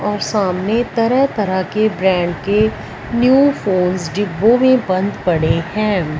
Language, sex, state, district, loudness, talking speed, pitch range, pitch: Hindi, female, Punjab, Fazilka, -16 LUFS, 135 wpm, 185-230 Hz, 205 Hz